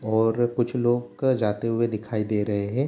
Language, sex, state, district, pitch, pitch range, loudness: Hindi, male, Bihar, Darbhanga, 115 Hz, 105-120 Hz, -25 LUFS